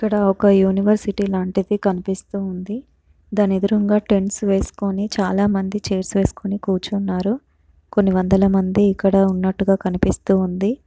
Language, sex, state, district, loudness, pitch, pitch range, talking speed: Telugu, female, Telangana, Karimnagar, -19 LUFS, 195 Hz, 190-205 Hz, 110 wpm